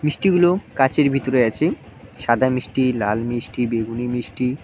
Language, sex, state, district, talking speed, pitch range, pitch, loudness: Bengali, male, West Bengal, Cooch Behar, 130 wpm, 120-140 Hz, 125 Hz, -20 LUFS